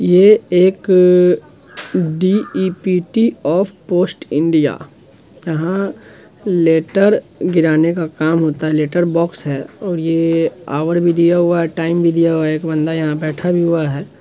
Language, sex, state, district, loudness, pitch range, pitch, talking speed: Hindi, male, Bihar, Sitamarhi, -15 LUFS, 160-180 Hz, 170 Hz, 150 wpm